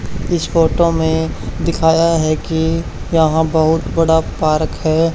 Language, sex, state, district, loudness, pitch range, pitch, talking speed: Hindi, male, Haryana, Charkhi Dadri, -15 LUFS, 160-165 Hz, 160 Hz, 130 wpm